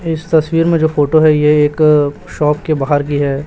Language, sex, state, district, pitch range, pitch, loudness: Hindi, male, Chhattisgarh, Raipur, 145-160 Hz, 150 Hz, -13 LUFS